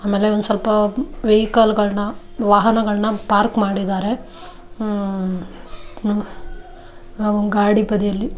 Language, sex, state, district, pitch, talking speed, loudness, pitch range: Kannada, female, Karnataka, Dharwad, 210 Hz, 80 wpm, -18 LUFS, 205-220 Hz